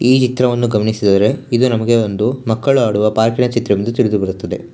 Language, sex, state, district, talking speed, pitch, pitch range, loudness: Kannada, male, Karnataka, Bangalore, 165 wpm, 115 Hz, 105-125 Hz, -15 LUFS